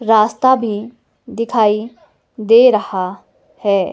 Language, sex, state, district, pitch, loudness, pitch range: Hindi, female, Himachal Pradesh, Shimla, 220 Hz, -15 LUFS, 210-235 Hz